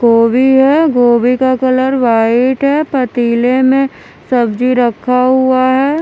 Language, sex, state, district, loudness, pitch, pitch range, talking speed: Hindi, female, Haryana, Charkhi Dadri, -11 LUFS, 255 Hz, 240-265 Hz, 130 wpm